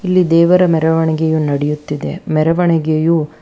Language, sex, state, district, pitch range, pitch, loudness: Kannada, female, Karnataka, Bangalore, 155-170 Hz, 160 Hz, -14 LUFS